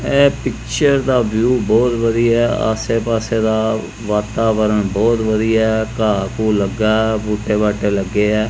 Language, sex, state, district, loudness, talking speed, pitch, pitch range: Punjabi, male, Punjab, Kapurthala, -16 LUFS, 135 wpm, 110 Hz, 105-115 Hz